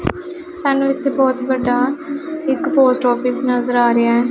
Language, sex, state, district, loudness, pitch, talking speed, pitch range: Punjabi, female, Punjab, Pathankot, -17 LUFS, 265 Hz, 140 wpm, 250-290 Hz